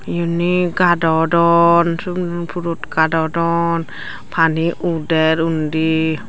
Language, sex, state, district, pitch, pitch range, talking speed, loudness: Chakma, female, Tripura, Dhalai, 170 Hz, 160-170 Hz, 75 wpm, -17 LUFS